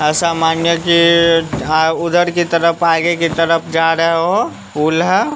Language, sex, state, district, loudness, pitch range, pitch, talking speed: Hindi, male, Bihar, West Champaran, -14 LUFS, 165-170 Hz, 165 Hz, 180 wpm